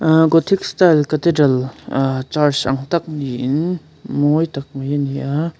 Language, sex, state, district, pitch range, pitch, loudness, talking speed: Mizo, male, Mizoram, Aizawl, 135-160 Hz, 150 Hz, -17 LUFS, 140 wpm